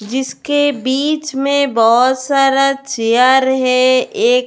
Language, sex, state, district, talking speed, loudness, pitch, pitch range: Hindi, female, Goa, North and South Goa, 105 wpm, -13 LUFS, 265 Hz, 255-280 Hz